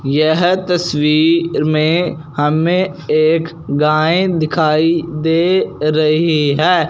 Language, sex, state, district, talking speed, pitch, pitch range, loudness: Hindi, male, Punjab, Fazilka, 85 wpm, 160 Hz, 155-170 Hz, -14 LUFS